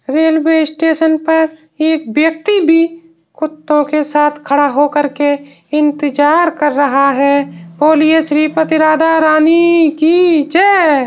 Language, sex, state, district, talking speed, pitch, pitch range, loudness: Hindi, male, Uttar Pradesh, Varanasi, 120 wpm, 310 Hz, 290-320 Hz, -12 LUFS